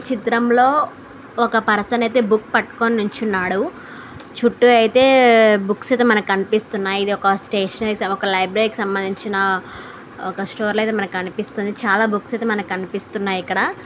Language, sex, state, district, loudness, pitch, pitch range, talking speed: Telugu, female, Andhra Pradesh, Srikakulam, -18 LUFS, 210 Hz, 195-230 Hz, 135 wpm